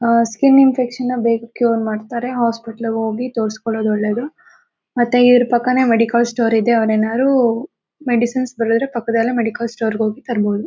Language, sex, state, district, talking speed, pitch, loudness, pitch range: Kannada, female, Karnataka, Mysore, 140 wpm, 235 Hz, -17 LUFS, 225-250 Hz